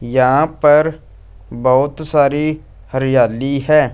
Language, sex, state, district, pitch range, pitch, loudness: Hindi, male, Punjab, Fazilka, 120-150 Hz, 135 Hz, -15 LUFS